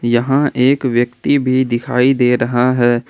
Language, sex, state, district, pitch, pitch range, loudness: Hindi, male, Jharkhand, Ranchi, 125 Hz, 120-130 Hz, -14 LUFS